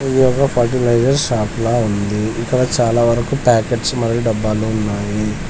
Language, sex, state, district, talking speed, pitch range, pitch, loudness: Telugu, male, Telangana, Komaram Bheem, 140 wpm, 110-125 Hz, 115 Hz, -16 LUFS